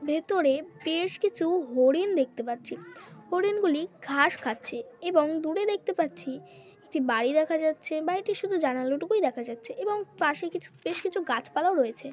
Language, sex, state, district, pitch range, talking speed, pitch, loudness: Bengali, female, West Bengal, Dakshin Dinajpur, 275-370 Hz, 155 wpm, 320 Hz, -28 LUFS